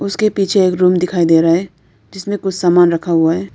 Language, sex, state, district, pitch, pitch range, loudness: Hindi, female, Arunachal Pradesh, Lower Dibang Valley, 180 Hz, 165-190 Hz, -14 LUFS